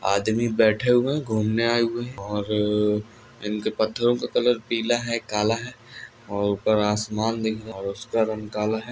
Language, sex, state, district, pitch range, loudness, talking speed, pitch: Hindi, male, Andhra Pradesh, Anantapur, 105-120 Hz, -24 LUFS, 210 wpm, 110 Hz